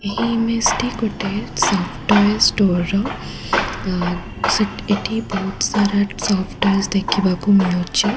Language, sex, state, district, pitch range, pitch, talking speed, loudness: Odia, female, Odisha, Khordha, 195-215 Hz, 200 Hz, 105 wpm, -18 LUFS